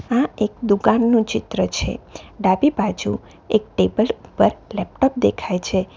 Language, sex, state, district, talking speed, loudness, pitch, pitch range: Gujarati, female, Gujarat, Valsad, 140 wpm, -20 LUFS, 220 Hz, 195-250 Hz